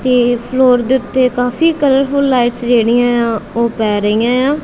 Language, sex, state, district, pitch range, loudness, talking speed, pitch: Punjabi, female, Punjab, Kapurthala, 235-260 Hz, -13 LUFS, 180 wpm, 245 Hz